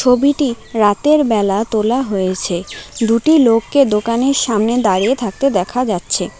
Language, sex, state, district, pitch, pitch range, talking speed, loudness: Bengali, female, West Bengal, Alipurduar, 230 Hz, 205-260 Hz, 120 wpm, -15 LUFS